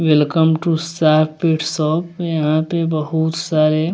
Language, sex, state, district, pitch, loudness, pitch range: Hindi, male, Bihar, West Champaran, 160 Hz, -17 LUFS, 155-165 Hz